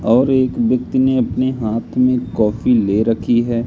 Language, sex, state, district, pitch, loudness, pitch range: Hindi, male, Madhya Pradesh, Katni, 120 Hz, -16 LUFS, 115-125 Hz